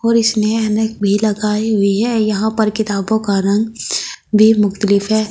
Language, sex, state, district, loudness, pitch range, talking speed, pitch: Hindi, female, Delhi, New Delhi, -15 LUFS, 205-220 Hz, 180 wpm, 215 Hz